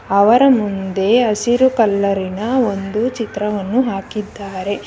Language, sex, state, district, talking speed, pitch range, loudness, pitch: Kannada, female, Karnataka, Bangalore, 100 wpm, 200-235 Hz, -16 LUFS, 210 Hz